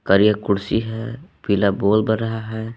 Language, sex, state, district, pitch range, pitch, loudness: Hindi, male, Jharkhand, Palamu, 100-115 Hz, 110 Hz, -20 LUFS